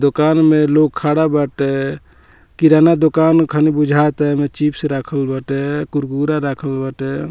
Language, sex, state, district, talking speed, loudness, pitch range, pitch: Bhojpuri, male, Bihar, Muzaffarpur, 125 wpm, -15 LUFS, 135-155 Hz, 145 Hz